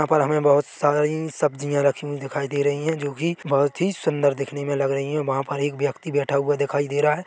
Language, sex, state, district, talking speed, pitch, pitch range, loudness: Hindi, male, Chhattisgarh, Bilaspur, 265 wpm, 145 Hz, 140-150 Hz, -23 LUFS